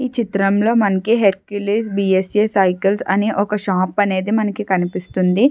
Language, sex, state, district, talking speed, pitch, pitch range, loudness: Telugu, female, Andhra Pradesh, Chittoor, 165 wpm, 200 Hz, 190-210 Hz, -17 LUFS